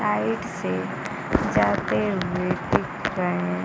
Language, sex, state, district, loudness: Hindi, female, Bihar, Kaimur, -25 LUFS